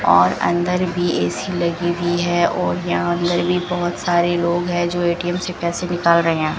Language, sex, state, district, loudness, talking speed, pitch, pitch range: Hindi, female, Rajasthan, Bikaner, -19 LUFS, 200 wpm, 175 Hz, 170-175 Hz